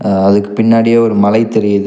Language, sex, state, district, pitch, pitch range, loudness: Tamil, male, Tamil Nadu, Nilgiris, 105 Hz, 100-115 Hz, -11 LUFS